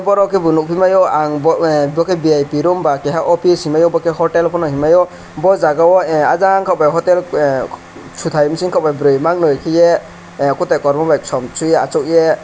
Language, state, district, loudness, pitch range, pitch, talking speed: Kokborok, Tripura, West Tripura, -13 LUFS, 150-180 Hz, 165 Hz, 200 wpm